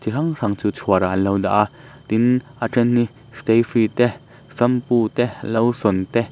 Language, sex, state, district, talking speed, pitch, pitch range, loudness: Mizo, male, Mizoram, Aizawl, 180 wpm, 115 Hz, 105-120 Hz, -19 LUFS